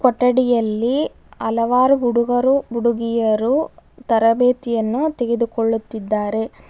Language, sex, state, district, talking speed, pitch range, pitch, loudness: Kannada, female, Karnataka, Bangalore, 55 wpm, 225-255 Hz, 235 Hz, -18 LUFS